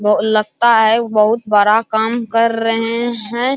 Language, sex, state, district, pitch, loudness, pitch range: Hindi, male, Bihar, Araria, 225 Hz, -14 LUFS, 215-235 Hz